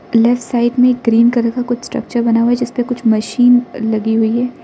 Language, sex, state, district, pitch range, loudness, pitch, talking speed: Hindi, female, Arunachal Pradesh, Lower Dibang Valley, 230-245 Hz, -14 LUFS, 240 Hz, 230 wpm